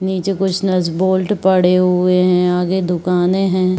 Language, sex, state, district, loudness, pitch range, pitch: Hindi, female, Uttar Pradesh, Varanasi, -15 LUFS, 180-190 Hz, 185 Hz